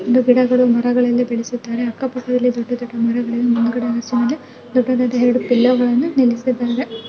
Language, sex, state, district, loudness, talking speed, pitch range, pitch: Kannada, female, Karnataka, Mysore, -17 LUFS, 125 wpm, 240-250 Hz, 245 Hz